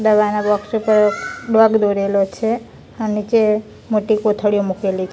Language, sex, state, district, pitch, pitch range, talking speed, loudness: Gujarati, female, Gujarat, Gandhinagar, 210 Hz, 205-220 Hz, 130 wpm, -17 LUFS